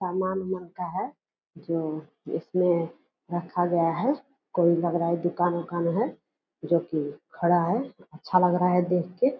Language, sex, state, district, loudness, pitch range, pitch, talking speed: Angika, female, Bihar, Purnia, -27 LUFS, 170-180 Hz, 175 Hz, 155 wpm